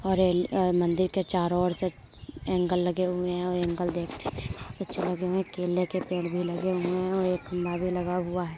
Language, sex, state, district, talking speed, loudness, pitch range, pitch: Hindi, female, Uttar Pradesh, Hamirpur, 240 wpm, -28 LUFS, 175-185 Hz, 180 Hz